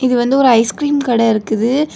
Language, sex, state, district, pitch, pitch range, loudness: Tamil, female, Tamil Nadu, Kanyakumari, 245 Hz, 230-275 Hz, -14 LUFS